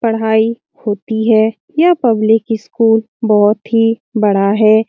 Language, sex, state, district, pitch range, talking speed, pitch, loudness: Hindi, female, Bihar, Lakhisarai, 215-230 Hz, 125 wpm, 225 Hz, -13 LUFS